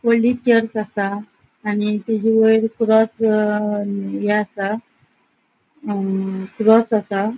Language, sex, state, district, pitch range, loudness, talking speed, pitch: Konkani, female, Goa, North and South Goa, 205-225 Hz, -18 LUFS, 95 wpm, 215 Hz